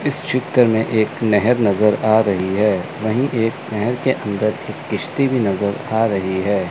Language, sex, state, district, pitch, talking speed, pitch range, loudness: Hindi, male, Chandigarh, Chandigarh, 110 Hz, 190 wpm, 100-120 Hz, -18 LUFS